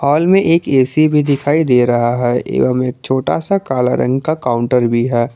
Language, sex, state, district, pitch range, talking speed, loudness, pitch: Hindi, male, Jharkhand, Garhwa, 125-150 Hz, 215 wpm, -14 LUFS, 130 Hz